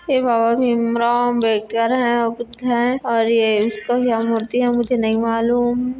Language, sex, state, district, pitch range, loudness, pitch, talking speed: Hindi, female, Chhattisgarh, Korba, 230-245 Hz, -18 LUFS, 235 Hz, 170 wpm